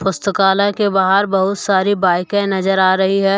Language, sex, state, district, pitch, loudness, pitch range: Hindi, male, Jharkhand, Deoghar, 195 Hz, -15 LUFS, 190-200 Hz